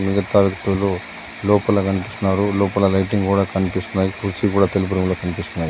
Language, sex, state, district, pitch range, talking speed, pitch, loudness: Telugu, male, Telangana, Adilabad, 95-100 Hz, 125 wpm, 95 Hz, -19 LUFS